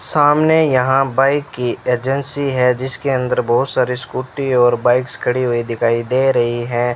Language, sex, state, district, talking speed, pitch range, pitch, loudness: Hindi, male, Rajasthan, Bikaner, 165 wpm, 120-135 Hz, 125 Hz, -16 LUFS